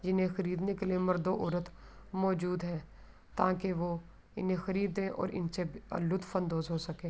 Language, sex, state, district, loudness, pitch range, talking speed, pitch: Urdu, female, Andhra Pradesh, Anantapur, -35 LUFS, 175-190 Hz, 150 wpm, 185 Hz